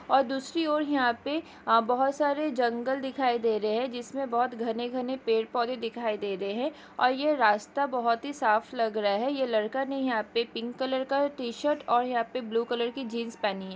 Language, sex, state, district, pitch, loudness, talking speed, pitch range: Hindi, female, Chhattisgarh, Kabirdham, 245 Hz, -28 LUFS, 225 wpm, 230-270 Hz